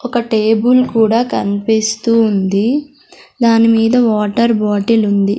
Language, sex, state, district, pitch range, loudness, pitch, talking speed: Telugu, female, Andhra Pradesh, Sri Satya Sai, 210-240 Hz, -13 LUFS, 225 Hz, 110 wpm